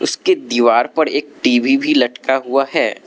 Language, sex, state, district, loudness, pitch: Hindi, male, Arunachal Pradesh, Lower Dibang Valley, -15 LUFS, 145 Hz